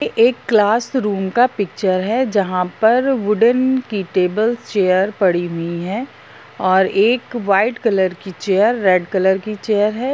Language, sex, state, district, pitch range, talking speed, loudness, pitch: Hindi, female, Bihar, Darbhanga, 185-235 Hz, 155 wpm, -17 LUFS, 205 Hz